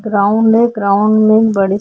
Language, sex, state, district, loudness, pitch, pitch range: Hindi, female, Maharashtra, Chandrapur, -11 LUFS, 215 Hz, 200-225 Hz